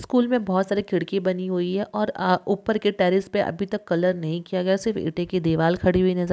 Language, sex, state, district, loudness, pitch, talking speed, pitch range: Hindi, female, Bihar, Sitamarhi, -23 LUFS, 185 Hz, 255 wpm, 180-205 Hz